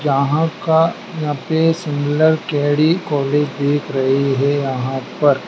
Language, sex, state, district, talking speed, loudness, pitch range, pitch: Hindi, male, Madhya Pradesh, Dhar, 130 wpm, -17 LUFS, 140-160 Hz, 145 Hz